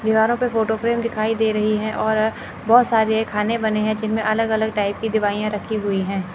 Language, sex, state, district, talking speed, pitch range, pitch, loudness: Hindi, male, Chandigarh, Chandigarh, 215 wpm, 215-225 Hz, 220 Hz, -20 LUFS